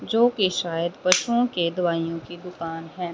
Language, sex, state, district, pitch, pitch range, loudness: Hindi, female, Haryana, Rohtak, 175 Hz, 165-185 Hz, -24 LUFS